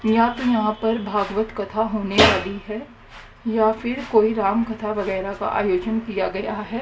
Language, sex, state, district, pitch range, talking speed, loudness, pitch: Hindi, female, Haryana, Rohtak, 205-225 Hz, 175 wpm, -21 LUFS, 220 Hz